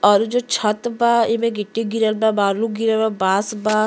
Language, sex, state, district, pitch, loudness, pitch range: Bhojpuri, female, Uttar Pradesh, Deoria, 220 Hz, -19 LUFS, 210-230 Hz